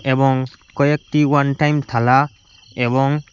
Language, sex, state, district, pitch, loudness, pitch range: Bengali, male, Assam, Hailakandi, 135 Hz, -17 LUFS, 125-145 Hz